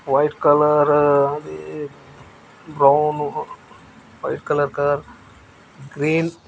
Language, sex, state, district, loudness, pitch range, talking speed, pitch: Telugu, male, Telangana, Nalgonda, -19 LUFS, 140-150 Hz, 85 wpm, 145 Hz